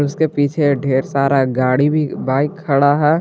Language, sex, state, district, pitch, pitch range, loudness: Hindi, male, Jharkhand, Garhwa, 145 Hz, 135-150 Hz, -16 LUFS